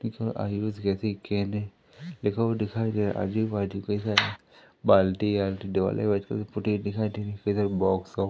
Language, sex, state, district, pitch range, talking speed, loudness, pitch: Hindi, male, Madhya Pradesh, Umaria, 100-110 Hz, 80 wpm, -27 LUFS, 105 Hz